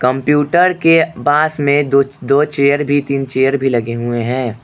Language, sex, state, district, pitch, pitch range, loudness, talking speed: Hindi, male, Arunachal Pradesh, Lower Dibang Valley, 140 Hz, 130-145 Hz, -14 LUFS, 180 wpm